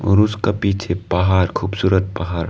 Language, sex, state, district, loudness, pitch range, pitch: Hindi, male, Arunachal Pradesh, Lower Dibang Valley, -18 LUFS, 90-100 Hz, 95 Hz